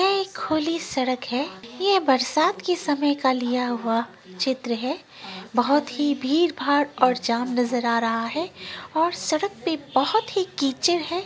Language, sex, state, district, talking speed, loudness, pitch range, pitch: Angika, female, Bihar, Araria, 170 wpm, -23 LUFS, 245-330 Hz, 275 Hz